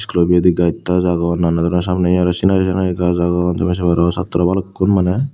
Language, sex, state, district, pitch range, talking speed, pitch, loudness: Chakma, male, Tripura, Unakoti, 85-90 Hz, 200 wpm, 90 Hz, -16 LUFS